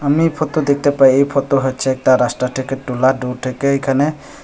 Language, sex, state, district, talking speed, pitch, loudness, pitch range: Bengali, male, Tripura, West Tripura, 190 wpm, 135 Hz, -16 LUFS, 130-140 Hz